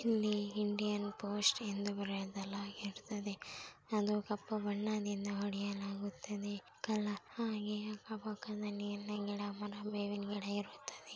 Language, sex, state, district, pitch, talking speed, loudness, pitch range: Kannada, female, Karnataka, Bellary, 205 Hz, 100 wpm, -40 LUFS, 205-210 Hz